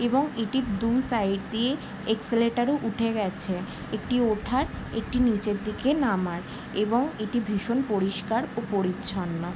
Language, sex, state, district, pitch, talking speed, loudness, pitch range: Bengali, female, West Bengal, Jalpaiguri, 225 Hz, 140 wpm, -27 LUFS, 205-245 Hz